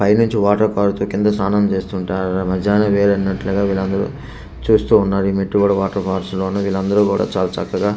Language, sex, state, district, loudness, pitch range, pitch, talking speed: Telugu, male, Andhra Pradesh, Manyam, -17 LUFS, 95-105 Hz, 100 Hz, 180 wpm